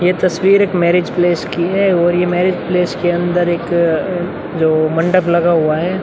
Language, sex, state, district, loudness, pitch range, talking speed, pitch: Hindi, male, Uttar Pradesh, Muzaffarnagar, -14 LUFS, 170-180 Hz, 180 wpm, 175 Hz